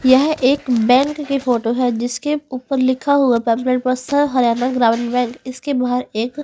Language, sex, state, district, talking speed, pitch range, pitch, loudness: Hindi, female, Haryana, Charkhi Dadri, 170 wpm, 245-275 Hz, 255 Hz, -17 LUFS